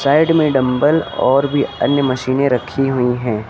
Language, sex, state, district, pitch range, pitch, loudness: Hindi, female, Uttar Pradesh, Lucknow, 125-145 Hz, 135 Hz, -16 LUFS